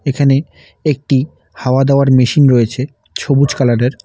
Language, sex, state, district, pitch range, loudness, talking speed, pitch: Bengali, male, West Bengal, Alipurduar, 125-140 Hz, -13 LUFS, 120 wpm, 135 Hz